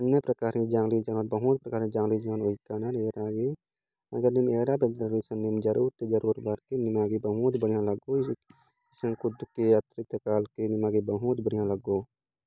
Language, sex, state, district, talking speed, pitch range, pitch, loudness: Sadri, male, Chhattisgarh, Jashpur, 125 wpm, 110-120 Hz, 110 Hz, -29 LUFS